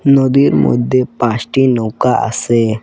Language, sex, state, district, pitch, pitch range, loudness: Bengali, male, Assam, Kamrup Metropolitan, 120 Hz, 115-135 Hz, -13 LUFS